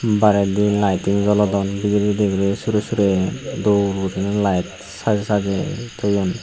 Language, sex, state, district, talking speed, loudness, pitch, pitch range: Chakma, male, Tripura, Unakoti, 120 wpm, -19 LUFS, 100 Hz, 100-105 Hz